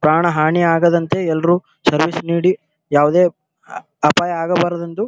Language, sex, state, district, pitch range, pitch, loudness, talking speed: Kannada, male, Karnataka, Gulbarga, 160-175 Hz, 170 Hz, -16 LUFS, 120 wpm